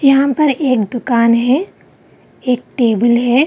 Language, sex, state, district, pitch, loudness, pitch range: Hindi, female, Bihar, Vaishali, 250 Hz, -14 LUFS, 235-275 Hz